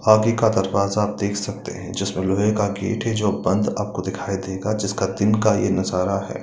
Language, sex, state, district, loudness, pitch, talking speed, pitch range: Hindi, male, Bihar, Gaya, -21 LUFS, 100 Hz, 205 wpm, 95-105 Hz